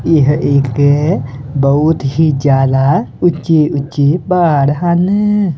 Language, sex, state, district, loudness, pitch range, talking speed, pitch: Punjabi, male, Punjab, Kapurthala, -12 LUFS, 140-170 Hz, 95 wpm, 150 Hz